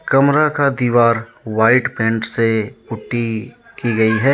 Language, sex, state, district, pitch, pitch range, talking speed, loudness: Hindi, male, Jharkhand, Deoghar, 115 Hz, 110-125 Hz, 140 wpm, -17 LUFS